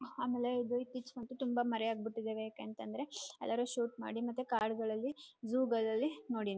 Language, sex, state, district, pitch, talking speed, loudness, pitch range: Kannada, female, Karnataka, Chamarajanagar, 240 Hz, 120 wpm, -38 LUFS, 225-255 Hz